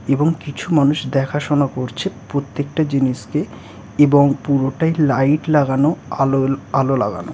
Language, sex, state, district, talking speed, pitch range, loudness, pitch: Bengali, male, West Bengal, Purulia, 115 wpm, 135-145 Hz, -18 LUFS, 140 Hz